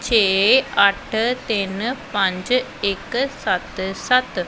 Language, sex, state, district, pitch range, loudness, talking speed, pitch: Punjabi, female, Punjab, Pathankot, 195-255 Hz, -19 LUFS, 95 wpm, 220 Hz